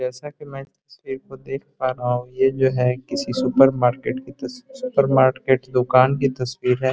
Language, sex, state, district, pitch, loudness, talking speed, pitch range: Hindi, male, Uttar Pradesh, Muzaffarnagar, 130 Hz, -20 LUFS, 190 wpm, 125-135 Hz